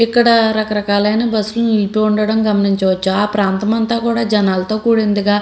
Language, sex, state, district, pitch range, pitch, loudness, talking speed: Telugu, female, Andhra Pradesh, Srikakulam, 205-225 Hz, 215 Hz, -15 LUFS, 145 wpm